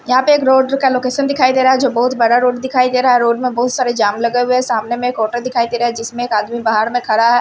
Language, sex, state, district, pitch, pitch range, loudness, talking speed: Hindi, female, Punjab, Kapurthala, 245 Hz, 235-255 Hz, -14 LUFS, 330 wpm